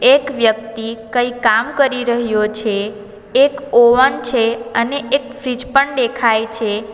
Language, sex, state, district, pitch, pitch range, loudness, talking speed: Gujarati, female, Gujarat, Valsad, 235 Hz, 220-265 Hz, -16 LUFS, 140 wpm